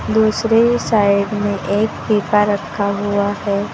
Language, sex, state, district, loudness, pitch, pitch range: Hindi, female, Uttar Pradesh, Lucknow, -17 LUFS, 205 Hz, 200-215 Hz